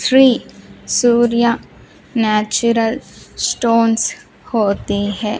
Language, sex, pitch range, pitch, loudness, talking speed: Hindi, female, 215-240 Hz, 230 Hz, -16 LUFS, 65 wpm